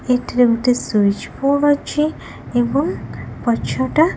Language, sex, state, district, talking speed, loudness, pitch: Odia, female, Odisha, Khordha, 100 wpm, -18 LUFS, 245 Hz